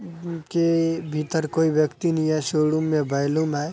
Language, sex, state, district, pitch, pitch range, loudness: Hindi, male, Bihar, Araria, 155 Hz, 150-165 Hz, -23 LUFS